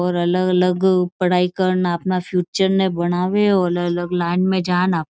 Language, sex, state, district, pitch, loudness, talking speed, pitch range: Marwari, female, Rajasthan, Churu, 180 Hz, -18 LUFS, 190 wpm, 175-185 Hz